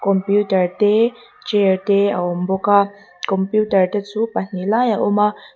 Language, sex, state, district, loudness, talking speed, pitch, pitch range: Mizo, female, Mizoram, Aizawl, -18 LUFS, 175 wpm, 200 Hz, 190-210 Hz